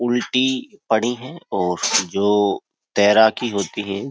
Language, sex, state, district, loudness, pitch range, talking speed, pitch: Hindi, male, Uttar Pradesh, Jyotiba Phule Nagar, -19 LUFS, 100-125 Hz, 145 wpm, 110 Hz